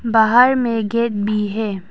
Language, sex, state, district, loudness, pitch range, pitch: Hindi, female, Arunachal Pradesh, Papum Pare, -17 LUFS, 210-235 Hz, 220 Hz